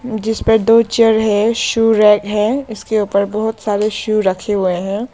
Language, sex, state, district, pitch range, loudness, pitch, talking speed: Hindi, female, Arunachal Pradesh, Papum Pare, 210-225 Hz, -15 LUFS, 215 Hz, 185 wpm